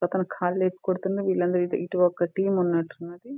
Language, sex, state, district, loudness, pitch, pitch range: Telugu, female, Telangana, Nalgonda, -25 LUFS, 180 Hz, 175-190 Hz